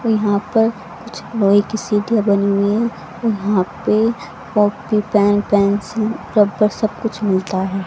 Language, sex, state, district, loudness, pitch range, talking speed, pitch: Hindi, female, Haryana, Rohtak, -17 LUFS, 200-220 Hz, 150 wpm, 210 Hz